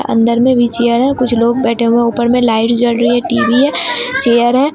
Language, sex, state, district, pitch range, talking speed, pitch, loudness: Hindi, female, Bihar, Katihar, 235-245 Hz, 255 wpm, 240 Hz, -12 LUFS